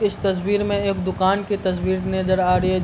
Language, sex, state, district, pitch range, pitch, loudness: Hindi, male, Bihar, Darbhanga, 185-200 Hz, 190 Hz, -21 LUFS